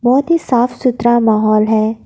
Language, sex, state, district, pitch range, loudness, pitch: Hindi, female, Assam, Kamrup Metropolitan, 220-250 Hz, -13 LUFS, 240 Hz